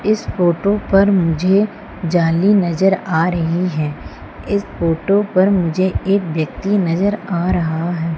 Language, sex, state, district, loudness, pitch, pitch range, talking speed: Hindi, female, Madhya Pradesh, Umaria, -17 LUFS, 180 Hz, 165-200 Hz, 140 wpm